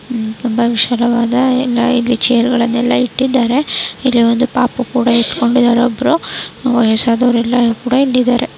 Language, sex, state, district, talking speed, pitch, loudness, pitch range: Kannada, female, Karnataka, Raichur, 90 wpm, 245 Hz, -13 LUFS, 235-255 Hz